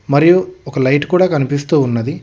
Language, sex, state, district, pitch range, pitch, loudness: Telugu, male, Telangana, Hyderabad, 140-175 Hz, 145 Hz, -14 LUFS